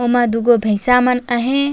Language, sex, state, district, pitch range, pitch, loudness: Chhattisgarhi, female, Chhattisgarh, Raigarh, 240-250 Hz, 245 Hz, -15 LUFS